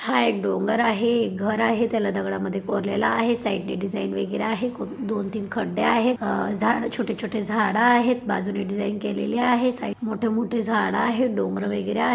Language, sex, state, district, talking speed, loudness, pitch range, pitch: Marathi, female, Maharashtra, Dhule, 185 wpm, -23 LUFS, 205-235 Hz, 220 Hz